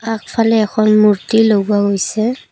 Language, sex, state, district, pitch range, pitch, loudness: Assamese, female, Assam, Kamrup Metropolitan, 210-225 Hz, 215 Hz, -14 LUFS